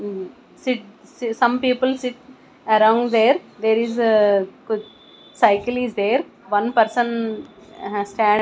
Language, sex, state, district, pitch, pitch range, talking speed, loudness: English, female, Odisha, Nuapada, 225 Hz, 210-245 Hz, 120 wpm, -20 LUFS